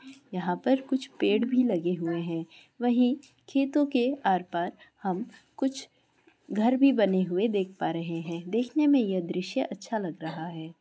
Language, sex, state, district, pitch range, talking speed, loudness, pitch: Hindi, female, Bihar, Purnia, 175-260 Hz, 165 wpm, -28 LUFS, 210 Hz